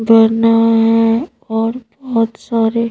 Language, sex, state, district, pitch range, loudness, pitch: Hindi, female, Madhya Pradesh, Bhopal, 225-230 Hz, -14 LUFS, 225 Hz